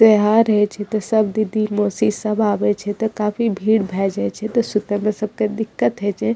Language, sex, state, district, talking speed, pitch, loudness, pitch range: Maithili, female, Bihar, Madhepura, 215 wpm, 215 Hz, -19 LUFS, 205-220 Hz